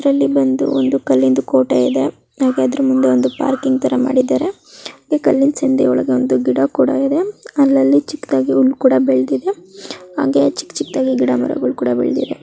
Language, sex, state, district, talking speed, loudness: Kannada, female, Karnataka, Raichur, 140 wpm, -15 LUFS